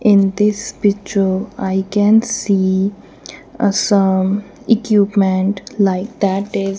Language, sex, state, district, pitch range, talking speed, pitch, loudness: English, female, Punjab, Kapurthala, 195-210 Hz, 105 wpm, 200 Hz, -16 LUFS